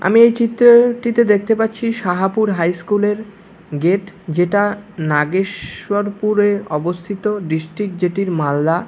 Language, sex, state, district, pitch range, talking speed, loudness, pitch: Bengali, male, West Bengal, Malda, 175-215 Hz, 110 wpm, -17 LUFS, 200 Hz